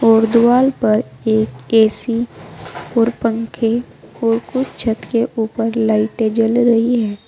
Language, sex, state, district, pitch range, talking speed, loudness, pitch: Hindi, female, Uttar Pradesh, Saharanpur, 220-235 Hz, 130 wpm, -16 LUFS, 225 Hz